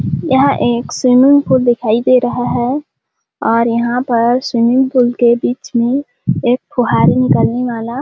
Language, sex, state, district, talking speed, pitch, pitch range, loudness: Hindi, female, Chhattisgarh, Sarguja, 155 wpm, 245 Hz, 235-255 Hz, -13 LUFS